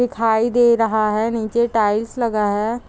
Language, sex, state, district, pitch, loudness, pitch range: Hindi, female, Bihar, Gopalganj, 225 Hz, -18 LUFS, 215-235 Hz